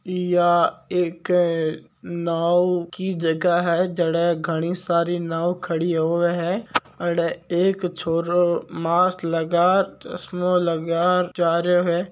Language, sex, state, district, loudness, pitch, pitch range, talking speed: Marwari, male, Rajasthan, Nagaur, -21 LUFS, 175 Hz, 170-180 Hz, 115 wpm